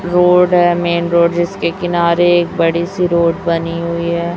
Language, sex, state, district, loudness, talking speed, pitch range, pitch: Hindi, male, Chhattisgarh, Raipur, -14 LUFS, 180 wpm, 170-175 Hz, 170 Hz